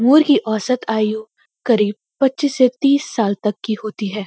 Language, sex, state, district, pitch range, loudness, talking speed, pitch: Hindi, female, Uttarakhand, Uttarkashi, 215-270 Hz, -18 LUFS, 180 wpm, 220 Hz